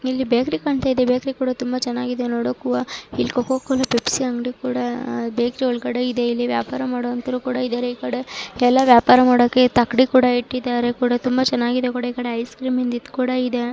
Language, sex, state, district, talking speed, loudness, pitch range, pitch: Kannada, female, Karnataka, Dharwad, 155 wpm, -20 LUFS, 240-255 Hz, 250 Hz